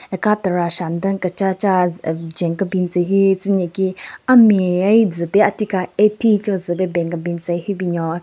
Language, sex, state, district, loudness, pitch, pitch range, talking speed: Rengma, female, Nagaland, Kohima, -17 LUFS, 185 Hz, 175-200 Hz, 180 wpm